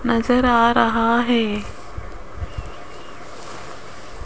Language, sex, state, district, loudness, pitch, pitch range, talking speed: Hindi, female, Rajasthan, Jaipur, -18 LUFS, 235 Hz, 230-245 Hz, 55 wpm